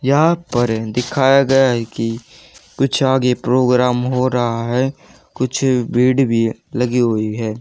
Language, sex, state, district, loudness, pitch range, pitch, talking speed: Hindi, male, Haryana, Jhajjar, -16 LUFS, 120-135 Hz, 125 Hz, 140 wpm